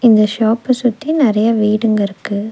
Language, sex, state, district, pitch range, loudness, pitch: Tamil, female, Tamil Nadu, Nilgiris, 210-240 Hz, -15 LUFS, 220 Hz